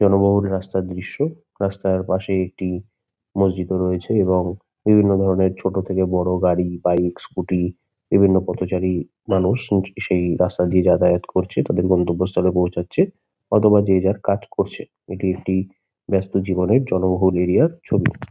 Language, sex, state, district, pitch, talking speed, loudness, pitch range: Bengali, male, West Bengal, Kolkata, 95 Hz, 140 wpm, -20 LUFS, 90-100 Hz